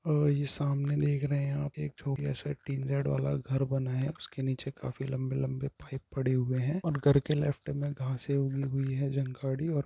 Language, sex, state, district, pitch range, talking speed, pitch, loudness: Hindi, male, Uttarakhand, Tehri Garhwal, 135-145 Hz, 205 wpm, 140 Hz, -32 LUFS